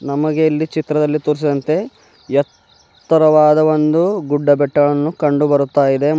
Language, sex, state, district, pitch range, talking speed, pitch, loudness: Kannada, female, Karnataka, Bidar, 145-155 Hz, 105 wpm, 150 Hz, -15 LUFS